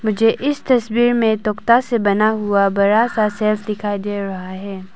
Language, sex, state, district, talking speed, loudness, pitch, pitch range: Hindi, female, Arunachal Pradesh, Papum Pare, 180 wpm, -17 LUFS, 215 Hz, 200-230 Hz